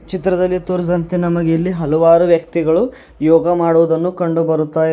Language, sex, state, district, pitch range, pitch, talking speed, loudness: Kannada, male, Karnataka, Bidar, 165-180 Hz, 170 Hz, 110 wpm, -15 LUFS